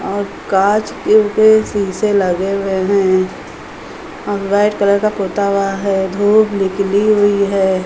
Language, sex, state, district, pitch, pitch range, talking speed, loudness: Hindi, female, Uttar Pradesh, Hamirpur, 200 Hz, 195-205 Hz, 135 wpm, -14 LUFS